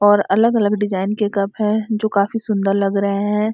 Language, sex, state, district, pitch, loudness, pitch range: Hindi, female, Uttarakhand, Uttarkashi, 205 Hz, -18 LUFS, 200-215 Hz